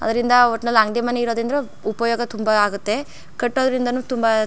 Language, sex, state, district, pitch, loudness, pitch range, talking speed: Kannada, female, Karnataka, Chamarajanagar, 235 Hz, -20 LUFS, 220-245 Hz, 145 wpm